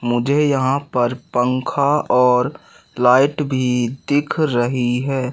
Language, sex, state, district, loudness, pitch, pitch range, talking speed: Hindi, male, Madhya Pradesh, Katni, -18 LUFS, 130 Hz, 125-140 Hz, 110 wpm